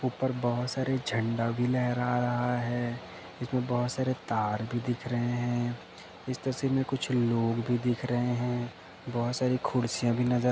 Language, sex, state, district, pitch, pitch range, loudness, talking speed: Hindi, male, Uttar Pradesh, Budaun, 120 Hz, 120-125 Hz, -30 LUFS, 175 wpm